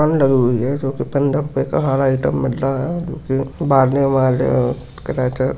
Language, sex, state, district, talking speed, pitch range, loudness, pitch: Hindi, male, West Bengal, Kolkata, 105 wpm, 130-140 Hz, -18 LUFS, 135 Hz